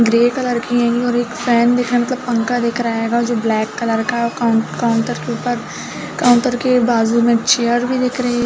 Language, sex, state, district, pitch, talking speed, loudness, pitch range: Hindi, female, Uttar Pradesh, Budaun, 240 Hz, 240 wpm, -16 LUFS, 235-245 Hz